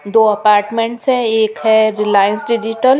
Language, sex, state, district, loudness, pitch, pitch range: Hindi, female, Chandigarh, Chandigarh, -14 LUFS, 220 Hz, 210-230 Hz